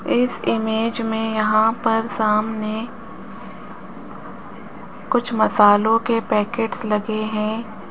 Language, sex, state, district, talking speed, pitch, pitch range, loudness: Hindi, female, Rajasthan, Jaipur, 90 wpm, 220 Hz, 215-225 Hz, -20 LUFS